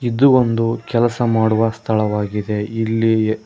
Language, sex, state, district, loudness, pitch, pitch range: Kannada, male, Karnataka, Koppal, -17 LUFS, 115 Hz, 110-115 Hz